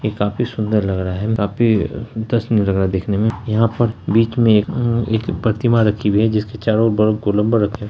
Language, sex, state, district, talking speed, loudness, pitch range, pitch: Hindi, male, Bihar, Saharsa, 235 wpm, -17 LUFS, 105-115 Hz, 110 Hz